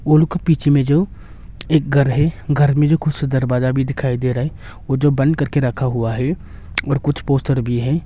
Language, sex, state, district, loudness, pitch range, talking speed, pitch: Hindi, male, Arunachal Pradesh, Longding, -18 LUFS, 125-150 Hz, 225 wpm, 140 Hz